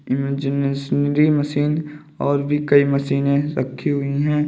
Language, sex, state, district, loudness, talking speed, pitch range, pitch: Hindi, male, Uttar Pradesh, Lalitpur, -20 LUFS, 120 wpm, 140-150 Hz, 145 Hz